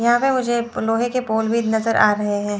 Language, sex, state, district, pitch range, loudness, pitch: Hindi, female, Chandigarh, Chandigarh, 220-240 Hz, -19 LUFS, 225 Hz